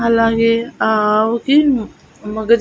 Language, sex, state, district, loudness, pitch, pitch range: Telugu, female, Andhra Pradesh, Annamaya, -15 LUFS, 230 Hz, 220-235 Hz